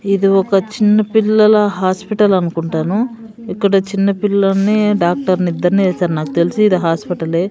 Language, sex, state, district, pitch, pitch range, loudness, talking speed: Telugu, female, Andhra Pradesh, Sri Satya Sai, 195 Hz, 180-210 Hz, -14 LUFS, 130 wpm